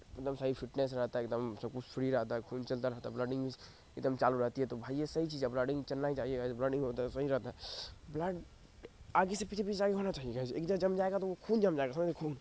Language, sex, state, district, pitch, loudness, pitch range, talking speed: Hindi, male, Bihar, Madhepura, 135 Hz, -36 LUFS, 125-160 Hz, 290 wpm